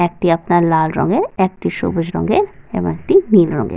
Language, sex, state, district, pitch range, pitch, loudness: Bengali, female, West Bengal, Jalpaiguri, 165-190 Hz, 175 Hz, -16 LUFS